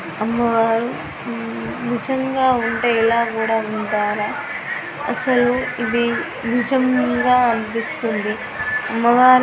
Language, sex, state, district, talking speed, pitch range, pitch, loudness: Telugu, female, Telangana, Nalgonda, 85 wpm, 225-250 Hz, 240 Hz, -19 LUFS